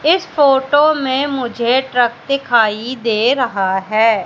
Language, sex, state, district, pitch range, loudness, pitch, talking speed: Hindi, female, Madhya Pradesh, Katni, 225-275 Hz, -15 LUFS, 250 Hz, 125 wpm